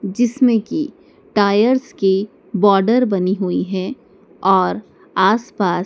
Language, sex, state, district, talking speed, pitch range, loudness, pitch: Hindi, female, Madhya Pradesh, Dhar, 110 wpm, 190-240 Hz, -17 LUFS, 205 Hz